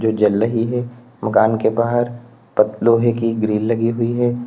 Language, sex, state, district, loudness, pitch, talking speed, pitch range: Hindi, male, Uttar Pradesh, Lalitpur, -18 LUFS, 115 Hz, 175 wpm, 110-120 Hz